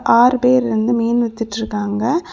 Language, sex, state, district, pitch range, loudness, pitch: Tamil, female, Tamil Nadu, Kanyakumari, 220-245 Hz, -16 LUFS, 235 Hz